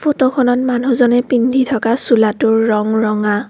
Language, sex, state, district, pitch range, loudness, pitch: Assamese, female, Assam, Kamrup Metropolitan, 220-255 Hz, -14 LUFS, 245 Hz